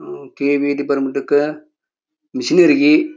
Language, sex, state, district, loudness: Kannada, male, Karnataka, Bijapur, -16 LUFS